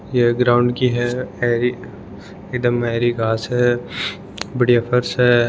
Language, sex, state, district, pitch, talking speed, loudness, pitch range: Hindi, male, Rajasthan, Churu, 120 Hz, 130 wpm, -18 LUFS, 120-125 Hz